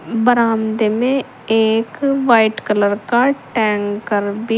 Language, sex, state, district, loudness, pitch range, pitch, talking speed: Hindi, female, Uttar Pradesh, Saharanpur, -16 LUFS, 215-240 Hz, 225 Hz, 90 wpm